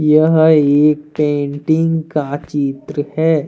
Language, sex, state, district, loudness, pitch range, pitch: Hindi, male, Jharkhand, Deoghar, -15 LUFS, 145-160 Hz, 150 Hz